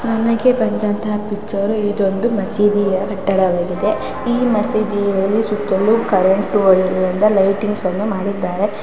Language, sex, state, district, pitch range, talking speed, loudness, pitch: Kannada, female, Karnataka, Raichur, 195-215 Hz, 95 wpm, -17 LUFS, 205 Hz